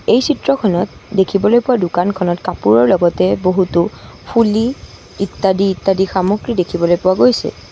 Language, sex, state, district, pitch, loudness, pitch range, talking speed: Assamese, female, Assam, Sonitpur, 190 Hz, -15 LUFS, 180-220 Hz, 115 wpm